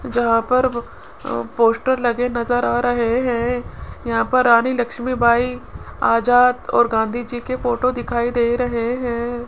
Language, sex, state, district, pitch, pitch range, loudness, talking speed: Hindi, female, Rajasthan, Jaipur, 240 Hz, 235-245 Hz, -19 LUFS, 145 wpm